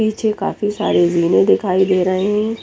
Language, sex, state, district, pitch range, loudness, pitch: Hindi, female, Chandigarh, Chandigarh, 175-210 Hz, -16 LUFS, 190 Hz